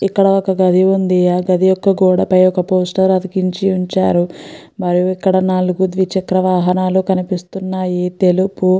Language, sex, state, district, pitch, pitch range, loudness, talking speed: Telugu, female, Andhra Pradesh, Guntur, 185 Hz, 185-190 Hz, -15 LUFS, 145 wpm